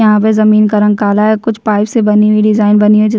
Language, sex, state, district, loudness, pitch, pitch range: Hindi, female, Chhattisgarh, Bastar, -10 LUFS, 215 Hz, 210-215 Hz